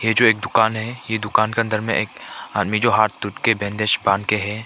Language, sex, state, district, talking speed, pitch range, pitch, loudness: Hindi, male, Arunachal Pradesh, Papum Pare, 255 wpm, 105-110 Hz, 110 Hz, -19 LUFS